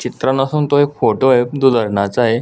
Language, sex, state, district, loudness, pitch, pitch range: Marathi, male, Maharashtra, Solapur, -15 LUFS, 130 Hz, 120-140 Hz